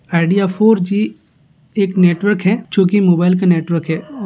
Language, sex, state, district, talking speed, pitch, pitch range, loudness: Hindi, male, Bihar, Gaya, 185 wpm, 185 Hz, 170-205 Hz, -15 LUFS